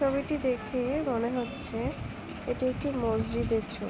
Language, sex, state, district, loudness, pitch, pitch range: Bengali, female, West Bengal, Jhargram, -31 LUFS, 250 Hz, 230-270 Hz